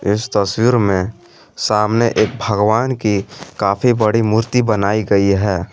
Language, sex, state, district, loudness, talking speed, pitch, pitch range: Hindi, male, Jharkhand, Garhwa, -16 LUFS, 135 wpm, 110 Hz, 100-115 Hz